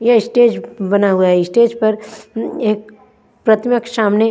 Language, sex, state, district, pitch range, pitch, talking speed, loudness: Hindi, female, Punjab, Fazilka, 210-235 Hz, 220 Hz, 180 wpm, -15 LUFS